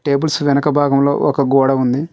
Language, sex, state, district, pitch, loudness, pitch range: Telugu, male, Telangana, Mahabubabad, 140 Hz, -15 LUFS, 135-145 Hz